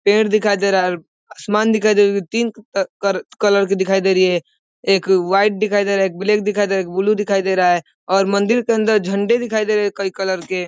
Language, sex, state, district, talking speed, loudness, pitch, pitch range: Hindi, male, Uttar Pradesh, Ghazipur, 255 wpm, -17 LUFS, 200 Hz, 190-210 Hz